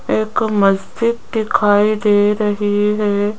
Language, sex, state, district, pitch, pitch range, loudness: Hindi, female, Rajasthan, Jaipur, 205 Hz, 205-215 Hz, -16 LUFS